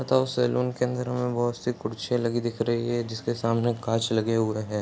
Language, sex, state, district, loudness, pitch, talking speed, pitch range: Hindi, male, Bihar, Bhagalpur, -27 LUFS, 120 Hz, 225 wpm, 115-125 Hz